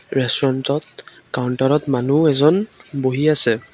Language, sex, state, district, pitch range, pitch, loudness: Assamese, male, Assam, Kamrup Metropolitan, 130-150 Hz, 135 Hz, -18 LUFS